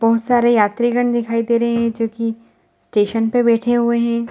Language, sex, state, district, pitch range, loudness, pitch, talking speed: Hindi, female, Bihar, Gaya, 230-235 Hz, -17 LUFS, 235 Hz, 220 wpm